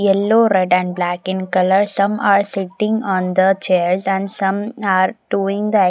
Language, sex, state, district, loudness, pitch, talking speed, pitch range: English, female, Odisha, Nuapada, -17 LUFS, 195 Hz, 195 wpm, 185-200 Hz